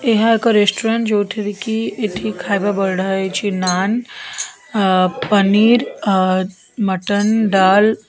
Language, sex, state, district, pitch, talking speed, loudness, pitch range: Odia, female, Odisha, Khordha, 205 Hz, 120 wpm, -16 LUFS, 190-220 Hz